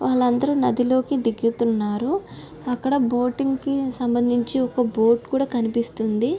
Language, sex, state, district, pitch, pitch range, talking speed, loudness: Telugu, female, Andhra Pradesh, Guntur, 245 Hz, 235-265 Hz, 115 wpm, -22 LUFS